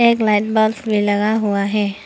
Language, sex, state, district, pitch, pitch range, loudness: Hindi, female, Arunachal Pradesh, Papum Pare, 210 Hz, 205-220 Hz, -17 LUFS